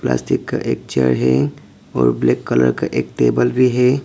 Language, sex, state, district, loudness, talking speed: Hindi, male, Arunachal Pradesh, Papum Pare, -17 LUFS, 195 wpm